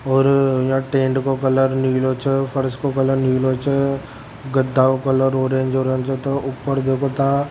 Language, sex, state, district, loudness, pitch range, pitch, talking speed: Rajasthani, male, Rajasthan, Churu, -19 LUFS, 130-135 Hz, 135 Hz, 170 wpm